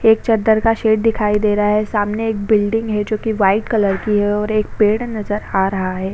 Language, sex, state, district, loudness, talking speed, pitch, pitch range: Hindi, female, Maharashtra, Chandrapur, -17 LUFS, 245 wpm, 210 Hz, 205-220 Hz